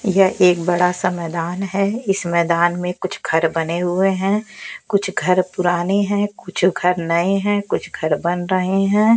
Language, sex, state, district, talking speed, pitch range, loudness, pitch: Hindi, female, Haryana, Jhajjar, 175 wpm, 175-195 Hz, -19 LUFS, 180 Hz